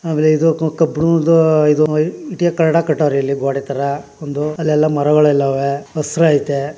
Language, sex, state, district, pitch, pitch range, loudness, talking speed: Kannada, male, Karnataka, Mysore, 150 Hz, 140-160 Hz, -15 LUFS, 150 wpm